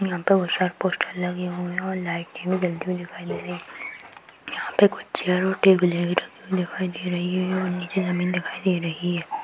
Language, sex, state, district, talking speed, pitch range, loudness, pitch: Hindi, female, Uttar Pradesh, Hamirpur, 235 wpm, 175-185 Hz, -24 LUFS, 180 Hz